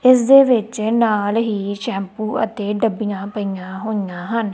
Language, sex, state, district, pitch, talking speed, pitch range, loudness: Punjabi, female, Punjab, Kapurthala, 215 Hz, 145 wpm, 200-230 Hz, -18 LUFS